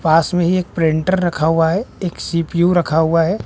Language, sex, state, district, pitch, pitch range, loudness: Hindi, male, Bihar, West Champaran, 165 Hz, 160-175 Hz, -16 LUFS